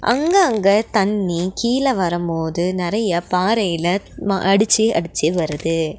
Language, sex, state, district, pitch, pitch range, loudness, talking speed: Tamil, female, Tamil Nadu, Nilgiris, 195 Hz, 170-220 Hz, -18 LUFS, 110 wpm